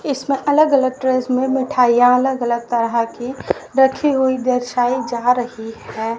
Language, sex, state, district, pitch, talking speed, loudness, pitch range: Hindi, female, Haryana, Rohtak, 255 Hz, 155 wpm, -17 LUFS, 240-265 Hz